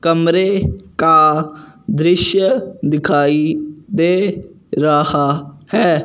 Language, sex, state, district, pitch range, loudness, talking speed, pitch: Hindi, male, Punjab, Fazilka, 150-180 Hz, -15 LUFS, 70 wpm, 160 Hz